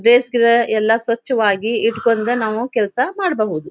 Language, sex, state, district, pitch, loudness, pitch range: Kannada, female, Karnataka, Dharwad, 230 Hz, -17 LUFS, 220-240 Hz